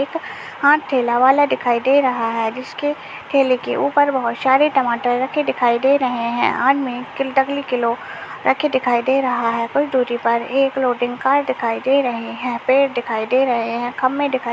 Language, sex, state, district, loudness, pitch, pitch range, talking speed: Hindi, female, Chhattisgarh, Kabirdham, -18 LUFS, 255 Hz, 240-275 Hz, 190 wpm